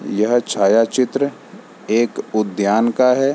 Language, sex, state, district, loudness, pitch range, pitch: Hindi, male, Bihar, East Champaran, -17 LUFS, 110-130 Hz, 120 Hz